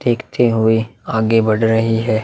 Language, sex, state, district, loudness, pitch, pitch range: Hindi, male, Bihar, Vaishali, -16 LUFS, 115 Hz, 110-115 Hz